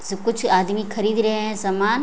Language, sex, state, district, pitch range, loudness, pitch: Hindi, female, Jharkhand, Sahebganj, 195-220 Hz, -21 LUFS, 215 Hz